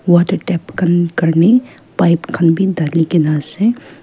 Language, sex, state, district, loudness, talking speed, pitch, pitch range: Nagamese, female, Nagaland, Kohima, -14 LUFS, 150 wpm, 175 Hz, 165-190 Hz